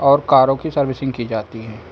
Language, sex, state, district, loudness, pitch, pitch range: Hindi, male, Uttar Pradesh, Lucknow, -17 LUFS, 130 Hz, 115-140 Hz